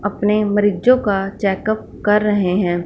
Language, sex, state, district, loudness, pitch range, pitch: Hindi, female, Punjab, Fazilka, -17 LUFS, 195-210 Hz, 205 Hz